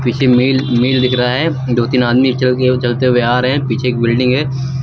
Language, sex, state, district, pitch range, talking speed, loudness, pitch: Hindi, male, Uttar Pradesh, Lucknow, 125-130 Hz, 275 wpm, -13 LUFS, 125 Hz